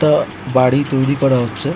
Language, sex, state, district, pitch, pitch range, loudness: Bengali, female, West Bengal, North 24 Parganas, 135 Hz, 130-145 Hz, -16 LUFS